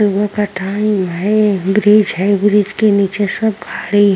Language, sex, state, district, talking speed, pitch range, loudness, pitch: Hindi, female, Uttar Pradesh, Jyotiba Phule Nagar, 175 wpm, 195-210 Hz, -14 LUFS, 205 Hz